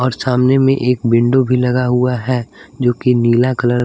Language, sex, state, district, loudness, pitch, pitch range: Hindi, male, Bihar, West Champaran, -14 LUFS, 125 Hz, 120-130 Hz